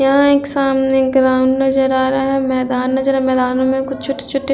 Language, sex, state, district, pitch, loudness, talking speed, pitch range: Hindi, female, Bihar, Vaishali, 265 Hz, -15 LUFS, 210 wpm, 260-270 Hz